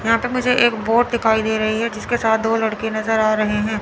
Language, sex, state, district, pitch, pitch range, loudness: Hindi, female, Chandigarh, Chandigarh, 220 Hz, 220-235 Hz, -18 LUFS